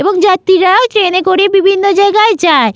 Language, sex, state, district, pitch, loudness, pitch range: Bengali, female, West Bengal, Malda, 390 Hz, -9 LUFS, 370-400 Hz